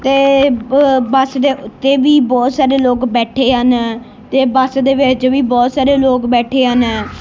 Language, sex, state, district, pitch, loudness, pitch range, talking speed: Punjabi, female, Punjab, Kapurthala, 260 Hz, -12 LUFS, 245-270 Hz, 165 wpm